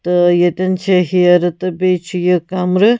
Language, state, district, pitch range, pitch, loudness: Kashmiri, Punjab, Kapurthala, 175-185 Hz, 180 Hz, -14 LUFS